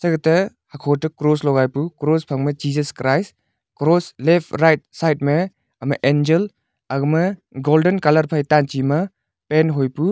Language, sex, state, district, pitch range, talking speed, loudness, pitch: Wancho, male, Arunachal Pradesh, Longding, 140-165 Hz, 165 wpm, -19 LUFS, 150 Hz